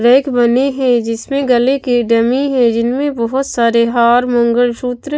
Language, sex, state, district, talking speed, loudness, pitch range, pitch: Hindi, female, Himachal Pradesh, Shimla, 150 wpm, -13 LUFS, 235-265 Hz, 245 Hz